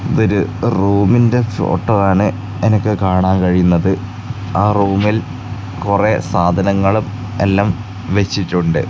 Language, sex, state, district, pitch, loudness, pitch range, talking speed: Malayalam, male, Kerala, Kasaragod, 100 Hz, -15 LUFS, 95-110 Hz, 95 wpm